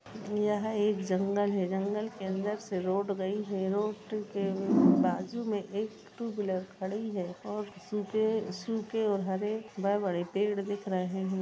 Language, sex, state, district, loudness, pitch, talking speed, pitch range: Hindi, female, Bihar, Gopalganj, -32 LUFS, 205 Hz, 165 wpm, 190-210 Hz